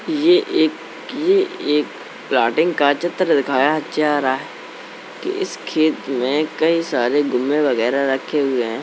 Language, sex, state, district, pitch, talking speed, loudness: Hindi, male, Uttar Pradesh, Jalaun, 155 Hz, 135 wpm, -18 LUFS